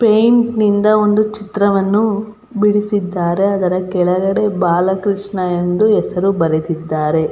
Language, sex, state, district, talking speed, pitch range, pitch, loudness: Kannada, female, Karnataka, Belgaum, 100 wpm, 180-210 Hz, 200 Hz, -15 LUFS